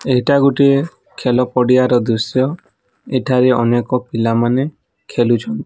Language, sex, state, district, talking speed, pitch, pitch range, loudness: Odia, male, Odisha, Nuapada, 125 wpm, 125 Hz, 120-135 Hz, -15 LUFS